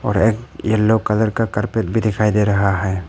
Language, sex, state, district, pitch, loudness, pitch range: Hindi, male, Arunachal Pradesh, Papum Pare, 110 Hz, -18 LUFS, 100-110 Hz